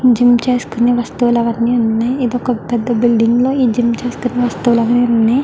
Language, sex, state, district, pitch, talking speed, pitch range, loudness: Telugu, female, Andhra Pradesh, Chittoor, 240 Hz, 155 wpm, 235-245 Hz, -14 LUFS